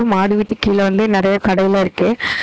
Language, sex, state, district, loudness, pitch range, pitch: Tamil, female, Tamil Nadu, Namakkal, -15 LUFS, 195-215 Hz, 200 Hz